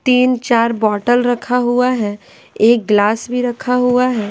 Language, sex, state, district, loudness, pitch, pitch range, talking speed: Hindi, female, Bihar, Patna, -15 LUFS, 245 Hz, 220-250 Hz, 180 wpm